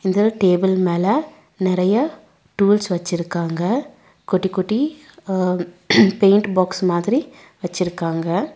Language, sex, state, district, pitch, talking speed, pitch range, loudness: Tamil, female, Tamil Nadu, Nilgiris, 190 Hz, 90 wpm, 180-210 Hz, -19 LUFS